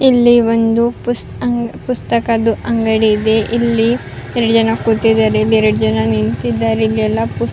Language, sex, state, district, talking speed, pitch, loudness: Kannada, female, Karnataka, Raichur, 125 wpm, 225 Hz, -14 LUFS